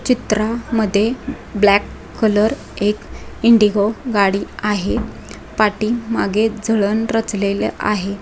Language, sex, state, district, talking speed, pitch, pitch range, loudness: Marathi, female, Maharashtra, Dhule, 90 wpm, 215 Hz, 205-225 Hz, -18 LUFS